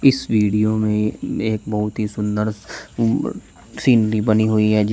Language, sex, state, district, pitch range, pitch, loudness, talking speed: Hindi, male, Uttar Pradesh, Shamli, 105-110 Hz, 110 Hz, -19 LUFS, 160 wpm